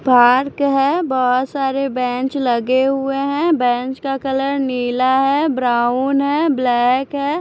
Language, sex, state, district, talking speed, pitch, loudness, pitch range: Hindi, female, Maharashtra, Washim, 140 wpm, 265 Hz, -17 LUFS, 250-275 Hz